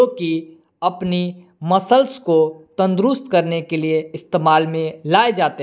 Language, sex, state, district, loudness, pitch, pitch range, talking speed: Hindi, male, Jharkhand, Palamu, -18 LUFS, 170 Hz, 160-185 Hz, 130 wpm